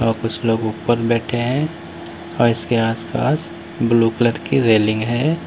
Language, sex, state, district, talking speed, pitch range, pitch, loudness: Hindi, male, Uttar Pradesh, Lalitpur, 155 wpm, 115-130 Hz, 115 Hz, -18 LUFS